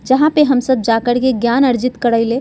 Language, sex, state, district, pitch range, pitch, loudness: Bajjika, female, Bihar, Vaishali, 235-260 Hz, 250 Hz, -14 LUFS